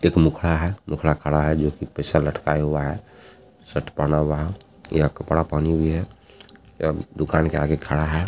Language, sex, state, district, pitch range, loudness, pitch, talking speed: Hindi, male, Bihar, Jamui, 75-80 Hz, -23 LUFS, 80 Hz, 195 wpm